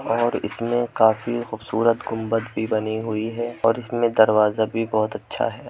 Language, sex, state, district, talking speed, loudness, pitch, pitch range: Hindi, male, Uttar Pradesh, Muzaffarnagar, 170 wpm, -22 LUFS, 115 Hz, 110-120 Hz